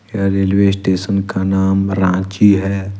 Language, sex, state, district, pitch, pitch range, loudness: Hindi, male, Jharkhand, Ranchi, 95 Hz, 95-100 Hz, -15 LUFS